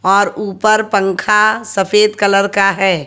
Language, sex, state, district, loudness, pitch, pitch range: Hindi, female, Haryana, Jhajjar, -13 LUFS, 200 Hz, 195-210 Hz